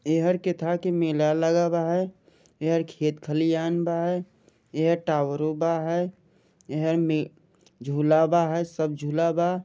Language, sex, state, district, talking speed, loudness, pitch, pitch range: Bhojpuri, male, Jharkhand, Sahebganj, 155 wpm, -25 LUFS, 165 Hz, 155-175 Hz